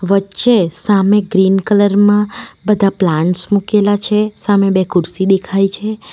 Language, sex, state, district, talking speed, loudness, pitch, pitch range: Gujarati, female, Gujarat, Valsad, 135 wpm, -13 LUFS, 200 Hz, 190-210 Hz